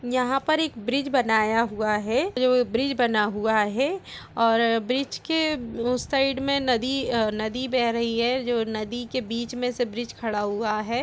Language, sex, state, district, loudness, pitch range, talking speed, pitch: Hindi, female, Uttar Pradesh, Jalaun, -24 LUFS, 225-255 Hz, 185 wpm, 240 Hz